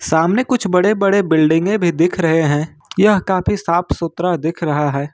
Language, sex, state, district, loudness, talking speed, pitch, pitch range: Hindi, male, Jharkhand, Ranchi, -16 LUFS, 165 wpm, 170 Hz, 160-195 Hz